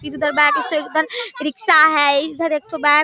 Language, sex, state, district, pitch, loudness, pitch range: Hindi, female, Bihar, Darbhanga, 300 Hz, -16 LUFS, 295-315 Hz